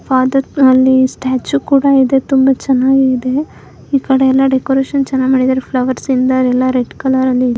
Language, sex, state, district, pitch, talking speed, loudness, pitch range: Kannada, female, Karnataka, Mysore, 260 Hz, 150 wpm, -13 LUFS, 255-270 Hz